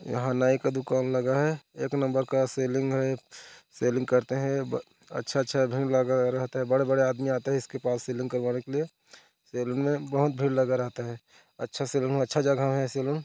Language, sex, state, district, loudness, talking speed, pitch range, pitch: Chhattisgarhi, male, Chhattisgarh, Korba, -28 LUFS, 200 wpm, 130-135 Hz, 130 Hz